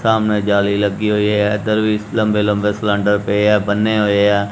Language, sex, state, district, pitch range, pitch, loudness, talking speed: Punjabi, male, Punjab, Kapurthala, 100-105 Hz, 105 Hz, -16 LUFS, 185 wpm